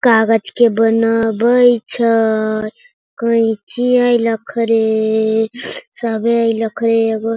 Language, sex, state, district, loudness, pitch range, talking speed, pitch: Hindi, female, Bihar, Sitamarhi, -15 LUFS, 220-235 Hz, 90 wpm, 225 Hz